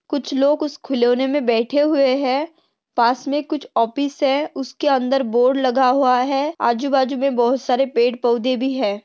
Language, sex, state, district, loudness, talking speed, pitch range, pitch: Hindi, female, Maharashtra, Pune, -19 LUFS, 170 wpm, 250-285 Hz, 270 Hz